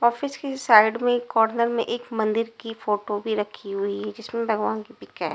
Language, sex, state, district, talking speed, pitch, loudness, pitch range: Hindi, female, Punjab, Pathankot, 215 wpm, 225 Hz, -24 LUFS, 215-235 Hz